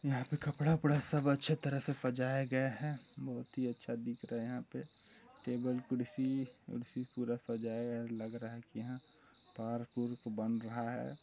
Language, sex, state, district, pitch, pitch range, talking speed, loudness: Hindi, male, Chhattisgarh, Sarguja, 125 Hz, 120-135 Hz, 170 wpm, -39 LUFS